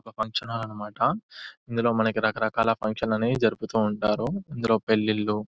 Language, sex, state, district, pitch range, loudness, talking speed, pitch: Telugu, male, Telangana, Nalgonda, 110-115 Hz, -26 LUFS, 155 wpm, 110 Hz